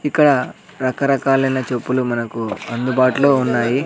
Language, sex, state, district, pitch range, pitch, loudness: Telugu, male, Andhra Pradesh, Sri Satya Sai, 125-140 Hz, 130 Hz, -18 LUFS